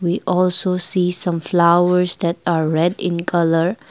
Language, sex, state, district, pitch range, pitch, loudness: English, female, Assam, Kamrup Metropolitan, 170-180 Hz, 175 Hz, -17 LUFS